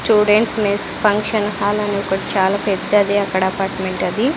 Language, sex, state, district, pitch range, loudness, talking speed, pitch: Telugu, female, Andhra Pradesh, Sri Satya Sai, 195-210 Hz, -17 LUFS, 150 wpm, 205 Hz